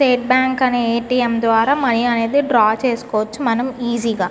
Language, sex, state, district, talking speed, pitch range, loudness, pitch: Telugu, female, Andhra Pradesh, Guntur, 165 wpm, 230-255 Hz, -17 LUFS, 240 Hz